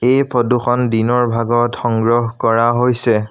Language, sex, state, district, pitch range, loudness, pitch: Assamese, male, Assam, Sonitpur, 115-125 Hz, -15 LUFS, 120 Hz